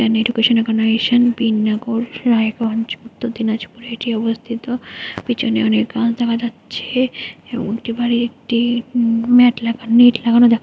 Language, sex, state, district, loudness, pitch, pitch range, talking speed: Bengali, female, West Bengal, Jhargram, -17 LUFS, 230 Hz, 225-240 Hz, 105 wpm